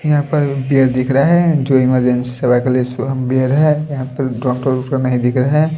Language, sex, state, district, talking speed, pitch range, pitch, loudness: Hindi, male, Haryana, Rohtak, 240 wpm, 125-145 Hz, 130 Hz, -15 LUFS